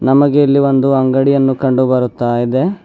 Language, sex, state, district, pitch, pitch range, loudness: Kannada, male, Karnataka, Bidar, 135 Hz, 130-140 Hz, -13 LUFS